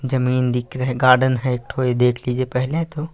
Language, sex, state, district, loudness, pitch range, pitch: Hindi, male, Chhattisgarh, Raigarh, -19 LUFS, 125-130 Hz, 130 Hz